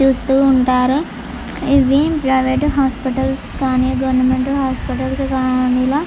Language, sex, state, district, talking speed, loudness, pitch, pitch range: Telugu, female, Andhra Pradesh, Chittoor, 100 wpm, -16 LUFS, 265 Hz, 260-275 Hz